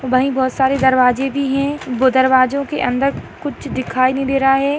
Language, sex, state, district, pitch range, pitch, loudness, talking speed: Hindi, female, Maharashtra, Aurangabad, 260-275 Hz, 265 Hz, -16 LUFS, 200 wpm